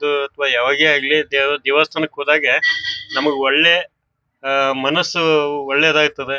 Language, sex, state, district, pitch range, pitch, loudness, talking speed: Kannada, male, Karnataka, Bijapur, 140-155 Hz, 145 Hz, -15 LUFS, 115 wpm